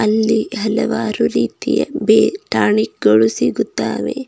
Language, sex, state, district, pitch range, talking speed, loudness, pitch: Kannada, female, Karnataka, Bidar, 210-220 Hz, 100 wpm, -16 LUFS, 215 Hz